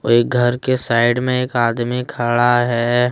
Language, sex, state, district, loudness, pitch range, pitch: Hindi, male, Jharkhand, Deoghar, -17 LUFS, 120-125 Hz, 120 Hz